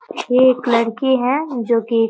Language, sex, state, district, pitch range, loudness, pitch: Hindi, female, Bihar, Muzaffarpur, 235-265 Hz, -17 LUFS, 250 Hz